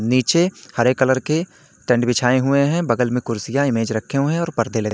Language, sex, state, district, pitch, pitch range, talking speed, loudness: Hindi, male, Uttar Pradesh, Lalitpur, 125 Hz, 115-140 Hz, 220 wpm, -19 LUFS